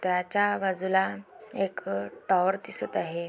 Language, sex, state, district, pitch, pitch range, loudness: Marathi, female, Maharashtra, Aurangabad, 190 Hz, 170-195 Hz, -28 LUFS